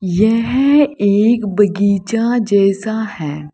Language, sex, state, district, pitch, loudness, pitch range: Hindi, female, Uttar Pradesh, Saharanpur, 210 Hz, -15 LUFS, 200-230 Hz